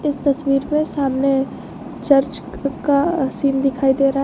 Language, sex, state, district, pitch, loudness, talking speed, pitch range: Hindi, female, Jharkhand, Garhwa, 275 Hz, -19 LUFS, 155 wpm, 270-285 Hz